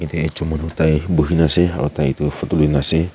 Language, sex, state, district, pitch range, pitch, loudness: Nagamese, male, Nagaland, Kohima, 75-80 Hz, 80 Hz, -17 LUFS